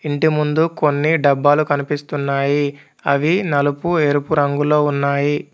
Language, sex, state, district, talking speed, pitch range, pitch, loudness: Telugu, male, Telangana, Komaram Bheem, 110 wpm, 145-150 Hz, 145 Hz, -17 LUFS